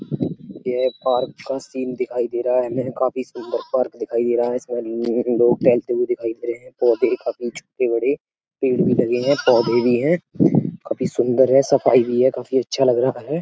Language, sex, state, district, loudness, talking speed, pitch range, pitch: Hindi, male, Uttar Pradesh, Etah, -20 LUFS, 220 wpm, 120-175 Hz, 130 Hz